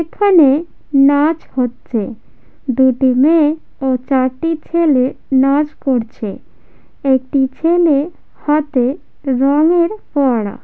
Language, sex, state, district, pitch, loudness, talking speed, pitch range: Bengali, female, West Bengal, Jhargram, 275 Hz, -15 LUFS, 85 wpm, 260-310 Hz